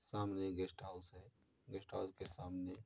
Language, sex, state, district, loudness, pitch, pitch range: Hindi, male, Uttar Pradesh, Muzaffarnagar, -47 LUFS, 95 Hz, 90-100 Hz